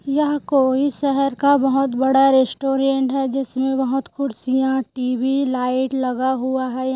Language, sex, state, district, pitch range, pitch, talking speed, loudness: Hindi, female, Chhattisgarh, Korba, 260-275 Hz, 265 Hz, 145 wpm, -19 LUFS